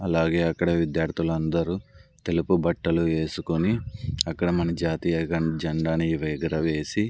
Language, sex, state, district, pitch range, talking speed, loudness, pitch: Telugu, male, Andhra Pradesh, Sri Satya Sai, 80-85 Hz, 95 wpm, -25 LUFS, 85 Hz